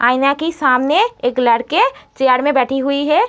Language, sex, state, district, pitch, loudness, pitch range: Hindi, female, Uttar Pradesh, Muzaffarnagar, 270 Hz, -15 LUFS, 255-305 Hz